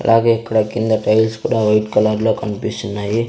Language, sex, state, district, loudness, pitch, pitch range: Telugu, male, Andhra Pradesh, Sri Satya Sai, -17 LUFS, 110 Hz, 105-110 Hz